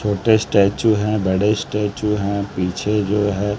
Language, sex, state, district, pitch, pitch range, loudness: Hindi, male, Maharashtra, Mumbai Suburban, 105 Hz, 100-105 Hz, -18 LUFS